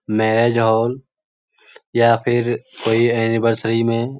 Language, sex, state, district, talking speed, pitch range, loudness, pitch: Magahi, male, Bihar, Lakhisarai, 115 wpm, 115-120 Hz, -18 LUFS, 115 Hz